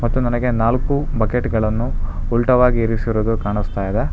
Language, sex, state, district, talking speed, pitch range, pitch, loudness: Kannada, male, Karnataka, Bangalore, 100 wpm, 110-125 Hz, 115 Hz, -19 LUFS